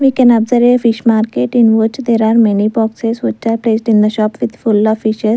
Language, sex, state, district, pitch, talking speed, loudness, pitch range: English, female, Punjab, Fazilka, 225 Hz, 245 wpm, -12 LUFS, 220-235 Hz